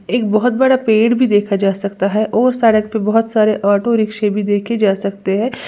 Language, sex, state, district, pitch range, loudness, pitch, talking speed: Hindi, female, Uttar Pradesh, Lalitpur, 205-230 Hz, -15 LUFS, 215 Hz, 220 wpm